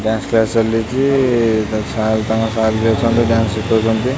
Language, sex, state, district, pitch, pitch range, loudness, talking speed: Odia, male, Odisha, Khordha, 110 Hz, 110-115 Hz, -16 LUFS, 160 wpm